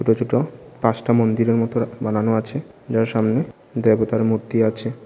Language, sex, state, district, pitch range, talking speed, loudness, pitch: Bengali, male, Tripura, Unakoti, 110-115 Hz, 140 wpm, -20 LUFS, 115 Hz